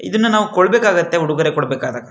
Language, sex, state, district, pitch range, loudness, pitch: Kannada, male, Karnataka, Shimoga, 150-210 Hz, -15 LUFS, 170 Hz